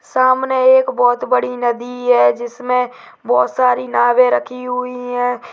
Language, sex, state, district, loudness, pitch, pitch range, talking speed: Hindi, male, Uttarakhand, Uttarkashi, -15 LUFS, 250 Hz, 240-250 Hz, 140 wpm